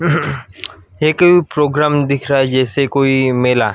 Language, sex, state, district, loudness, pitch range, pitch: Hindi, male, Maharashtra, Washim, -14 LUFS, 130-150 Hz, 140 Hz